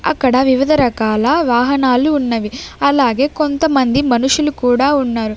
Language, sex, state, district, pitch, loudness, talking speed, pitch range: Telugu, female, Andhra Pradesh, Sri Satya Sai, 265 Hz, -14 LUFS, 110 wpm, 245-285 Hz